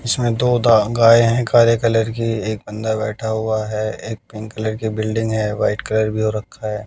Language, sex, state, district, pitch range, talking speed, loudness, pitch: Hindi, male, Haryana, Jhajjar, 110-115 Hz, 210 wpm, -18 LUFS, 110 Hz